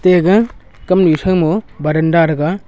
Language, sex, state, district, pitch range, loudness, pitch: Wancho, male, Arunachal Pradesh, Longding, 160-185 Hz, -14 LUFS, 175 Hz